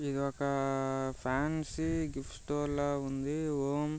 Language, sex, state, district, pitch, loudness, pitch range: Telugu, male, Andhra Pradesh, Visakhapatnam, 140 Hz, -34 LUFS, 135-150 Hz